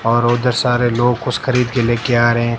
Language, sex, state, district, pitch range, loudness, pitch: Hindi, male, Rajasthan, Barmer, 120-125 Hz, -16 LUFS, 120 Hz